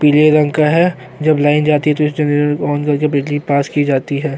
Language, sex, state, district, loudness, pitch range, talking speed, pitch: Hindi, male, Uttarakhand, Tehri Garhwal, -14 LUFS, 145-150 Hz, 260 wpm, 150 Hz